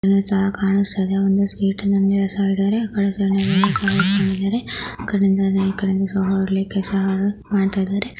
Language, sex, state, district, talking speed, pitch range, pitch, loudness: Kannada, male, Karnataka, Gulbarga, 35 wpm, 195-200 Hz, 195 Hz, -19 LUFS